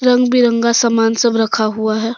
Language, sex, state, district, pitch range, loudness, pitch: Hindi, female, Jharkhand, Deoghar, 225-240 Hz, -14 LUFS, 230 Hz